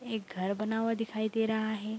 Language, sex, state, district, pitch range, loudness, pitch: Hindi, female, Bihar, Bhagalpur, 215-225 Hz, -32 LUFS, 220 Hz